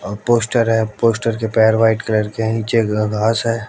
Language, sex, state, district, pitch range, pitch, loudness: Hindi, male, Haryana, Jhajjar, 110-115 Hz, 110 Hz, -17 LUFS